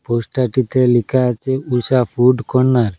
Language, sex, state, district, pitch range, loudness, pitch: Bengali, male, Assam, Hailakandi, 120-130 Hz, -16 LUFS, 125 Hz